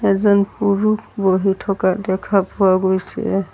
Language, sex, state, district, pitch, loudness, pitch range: Assamese, female, Assam, Sonitpur, 195 Hz, -18 LUFS, 190-205 Hz